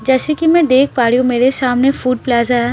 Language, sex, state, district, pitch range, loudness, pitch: Hindi, female, Bihar, Patna, 245-270 Hz, -13 LUFS, 255 Hz